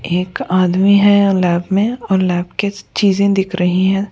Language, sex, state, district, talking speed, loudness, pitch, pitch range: Hindi, female, Goa, North and South Goa, 175 wpm, -15 LUFS, 190 Hz, 180-200 Hz